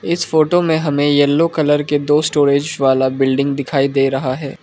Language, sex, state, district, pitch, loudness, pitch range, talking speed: Hindi, male, Arunachal Pradesh, Lower Dibang Valley, 145 Hz, -15 LUFS, 135-155 Hz, 195 wpm